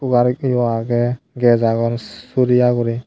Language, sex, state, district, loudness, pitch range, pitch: Chakma, male, Tripura, Dhalai, -17 LUFS, 120-125 Hz, 120 Hz